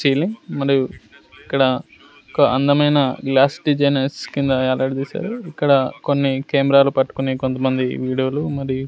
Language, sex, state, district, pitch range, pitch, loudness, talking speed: Telugu, male, Andhra Pradesh, Sri Satya Sai, 130-140 Hz, 135 Hz, -19 LUFS, 100 wpm